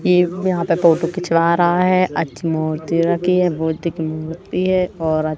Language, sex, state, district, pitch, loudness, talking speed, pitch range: Hindi, female, Madhya Pradesh, Katni, 170 Hz, -18 LUFS, 180 wpm, 160-180 Hz